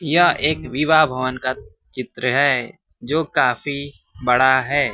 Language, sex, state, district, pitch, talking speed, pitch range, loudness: Hindi, male, Bihar, West Champaran, 130 Hz, 135 wpm, 125-150 Hz, -18 LUFS